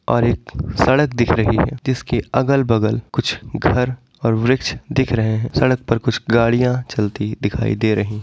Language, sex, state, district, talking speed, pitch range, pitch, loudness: Hindi, male, Bihar, Sitamarhi, 170 wpm, 110-130 Hz, 120 Hz, -18 LUFS